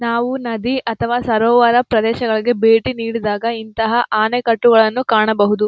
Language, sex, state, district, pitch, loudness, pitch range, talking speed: Kannada, female, Karnataka, Gulbarga, 230 Hz, -16 LUFS, 220-240 Hz, 105 wpm